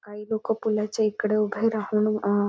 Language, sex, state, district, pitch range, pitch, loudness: Marathi, female, Maharashtra, Nagpur, 210-220 Hz, 215 Hz, -25 LUFS